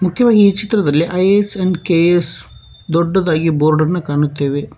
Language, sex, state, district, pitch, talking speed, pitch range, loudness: Kannada, male, Karnataka, Bangalore, 170 Hz, 125 wpm, 155-190 Hz, -14 LUFS